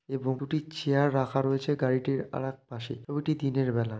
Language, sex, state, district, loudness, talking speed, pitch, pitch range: Bengali, male, West Bengal, North 24 Parganas, -29 LUFS, 165 wpm, 135 Hz, 130-145 Hz